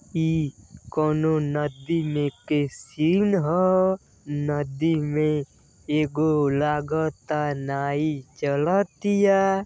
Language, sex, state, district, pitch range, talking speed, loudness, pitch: Bhojpuri, male, Uttar Pradesh, Deoria, 145-160 Hz, 80 wpm, -24 LUFS, 150 Hz